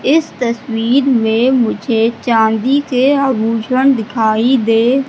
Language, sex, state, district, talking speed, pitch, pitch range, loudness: Hindi, female, Madhya Pradesh, Katni, 105 wpm, 240 Hz, 225-265 Hz, -13 LUFS